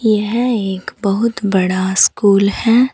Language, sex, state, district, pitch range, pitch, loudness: Hindi, female, Uttar Pradesh, Saharanpur, 195-230 Hz, 205 Hz, -15 LUFS